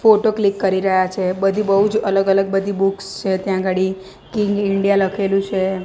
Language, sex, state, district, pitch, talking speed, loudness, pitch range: Gujarati, female, Gujarat, Gandhinagar, 195 Hz, 195 wpm, -18 LUFS, 190-200 Hz